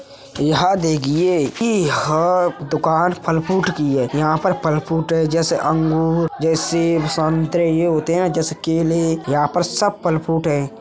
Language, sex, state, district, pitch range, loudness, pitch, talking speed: Hindi, male, Uttar Pradesh, Hamirpur, 155-170 Hz, -18 LUFS, 165 Hz, 150 wpm